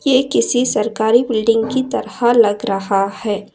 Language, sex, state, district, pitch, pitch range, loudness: Hindi, female, Karnataka, Bangalore, 225 Hz, 205-245 Hz, -16 LUFS